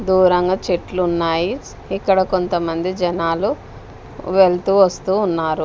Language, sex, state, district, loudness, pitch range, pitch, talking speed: Telugu, female, Andhra Pradesh, Sri Satya Sai, -18 LUFS, 165-190 Hz, 180 Hz, 95 wpm